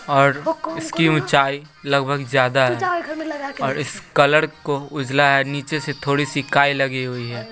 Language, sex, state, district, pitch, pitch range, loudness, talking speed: Hindi, female, Bihar, West Champaran, 140 Hz, 140-155 Hz, -19 LUFS, 160 wpm